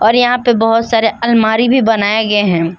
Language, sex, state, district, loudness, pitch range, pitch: Hindi, female, Jharkhand, Palamu, -12 LUFS, 215-235 Hz, 225 Hz